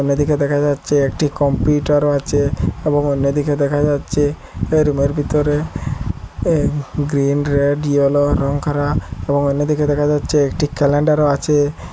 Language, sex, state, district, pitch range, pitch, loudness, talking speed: Bengali, male, Assam, Hailakandi, 140-145 Hz, 145 Hz, -17 LUFS, 140 wpm